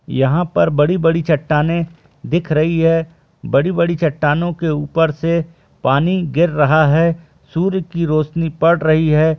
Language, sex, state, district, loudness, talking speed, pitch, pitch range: Hindi, male, Chhattisgarh, Bilaspur, -16 LUFS, 140 wpm, 160 Hz, 150-170 Hz